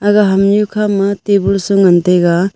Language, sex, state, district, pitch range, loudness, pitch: Wancho, female, Arunachal Pradesh, Longding, 185-205 Hz, -12 LUFS, 195 Hz